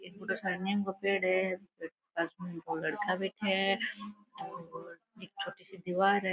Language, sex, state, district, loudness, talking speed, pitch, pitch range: Rajasthani, female, Rajasthan, Nagaur, -34 LUFS, 125 wpm, 190 Hz, 180-195 Hz